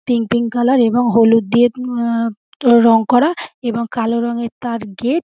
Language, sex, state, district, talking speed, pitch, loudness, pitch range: Bengali, female, West Bengal, Dakshin Dinajpur, 170 wpm, 235 Hz, -15 LUFS, 230-245 Hz